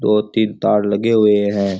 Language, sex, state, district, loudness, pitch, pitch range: Rajasthani, male, Rajasthan, Churu, -16 LUFS, 105 Hz, 100-110 Hz